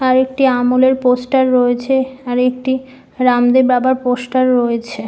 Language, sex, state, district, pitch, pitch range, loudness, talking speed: Bengali, female, West Bengal, Malda, 255 Hz, 250-260 Hz, -14 LUFS, 130 wpm